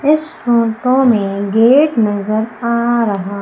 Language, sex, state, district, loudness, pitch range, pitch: Hindi, female, Madhya Pradesh, Umaria, -14 LUFS, 210-250 Hz, 230 Hz